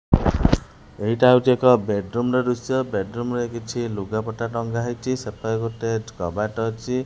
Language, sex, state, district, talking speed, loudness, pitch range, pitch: Odia, male, Odisha, Khordha, 160 wpm, -22 LUFS, 110-125 Hz, 115 Hz